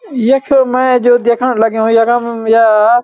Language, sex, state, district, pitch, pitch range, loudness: Garhwali, male, Uttarakhand, Uttarkashi, 240 Hz, 230-255 Hz, -11 LUFS